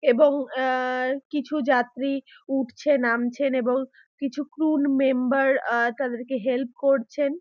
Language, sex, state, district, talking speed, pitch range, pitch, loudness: Bengali, female, West Bengal, Dakshin Dinajpur, 105 wpm, 255-280 Hz, 270 Hz, -24 LUFS